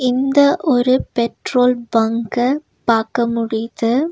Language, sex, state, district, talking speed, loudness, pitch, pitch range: Tamil, female, Tamil Nadu, Nilgiris, 85 wpm, -17 LUFS, 245 Hz, 230-265 Hz